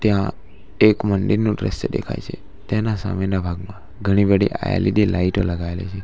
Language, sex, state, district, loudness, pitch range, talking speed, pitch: Gujarati, male, Gujarat, Valsad, -20 LUFS, 95-105 Hz, 150 wpm, 100 Hz